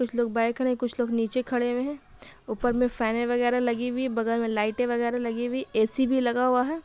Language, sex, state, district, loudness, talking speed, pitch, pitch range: Hindi, female, Bihar, Madhepura, -26 LUFS, 230 wpm, 245 Hz, 235-250 Hz